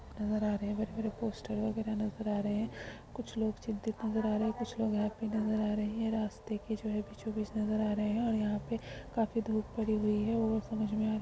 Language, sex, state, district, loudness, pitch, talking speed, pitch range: Hindi, female, Bihar, Araria, -35 LUFS, 215 Hz, 245 wpm, 210-220 Hz